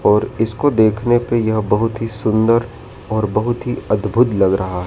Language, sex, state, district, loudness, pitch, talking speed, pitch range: Hindi, male, Madhya Pradesh, Dhar, -17 LUFS, 110 Hz, 185 wpm, 105-120 Hz